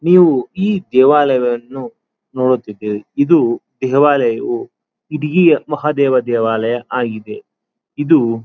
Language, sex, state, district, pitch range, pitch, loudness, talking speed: Kannada, male, Karnataka, Dharwad, 120-185 Hz, 145 Hz, -15 LUFS, 65 wpm